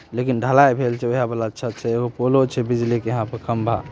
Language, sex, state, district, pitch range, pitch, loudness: Maithili, male, Bihar, Samastipur, 115-125 Hz, 120 Hz, -20 LUFS